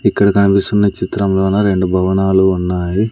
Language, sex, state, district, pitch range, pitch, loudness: Telugu, male, Andhra Pradesh, Sri Satya Sai, 95-100 Hz, 95 Hz, -14 LUFS